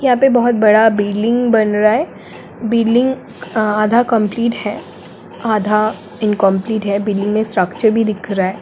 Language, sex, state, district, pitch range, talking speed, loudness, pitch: Hindi, female, Jharkhand, Jamtara, 210-230 Hz, 145 wpm, -15 LUFS, 215 Hz